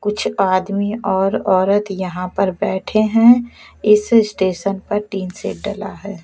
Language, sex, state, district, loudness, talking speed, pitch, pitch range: Hindi, female, Bihar, West Champaran, -17 LUFS, 145 wpm, 200 Hz, 190-210 Hz